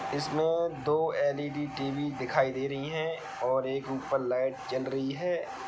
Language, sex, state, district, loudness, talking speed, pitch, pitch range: Hindi, male, Bihar, Sitamarhi, -31 LUFS, 160 wpm, 140 Hz, 130-155 Hz